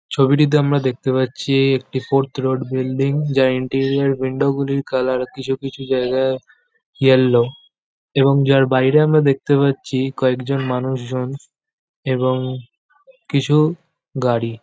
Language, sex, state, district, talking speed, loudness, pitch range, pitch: Bengali, male, West Bengal, Jhargram, 115 wpm, -18 LUFS, 130-140 Hz, 135 Hz